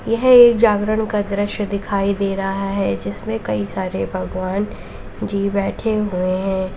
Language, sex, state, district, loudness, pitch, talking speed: Hindi, female, Uttar Pradesh, Lalitpur, -19 LUFS, 195 Hz, 150 wpm